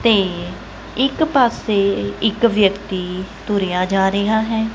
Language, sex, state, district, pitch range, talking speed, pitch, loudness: Punjabi, female, Punjab, Kapurthala, 190-225 Hz, 115 wpm, 200 Hz, -18 LUFS